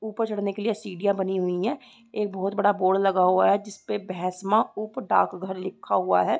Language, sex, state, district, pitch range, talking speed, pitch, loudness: Hindi, female, Chhattisgarh, Korba, 190-215 Hz, 205 wpm, 200 Hz, -25 LUFS